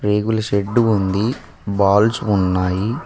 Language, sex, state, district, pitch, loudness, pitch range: Telugu, male, Telangana, Mahabubabad, 105 Hz, -18 LUFS, 100-110 Hz